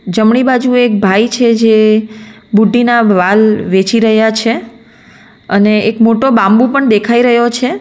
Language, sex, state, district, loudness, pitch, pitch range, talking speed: Gujarati, female, Gujarat, Valsad, -10 LUFS, 220 Hz, 215-240 Hz, 145 wpm